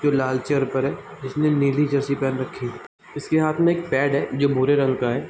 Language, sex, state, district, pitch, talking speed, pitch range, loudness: Hindi, male, Bihar, Sitamarhi, 140 Hz, 250 wpm, 130-145 Hz, -22 LUFS